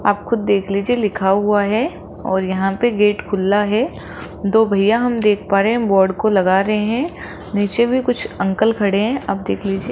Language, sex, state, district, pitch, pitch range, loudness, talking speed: Hindi, female, Rajasthan, Jaipur, 205 Hz, 195-225 Hz, -17 LUFS, 205 wpm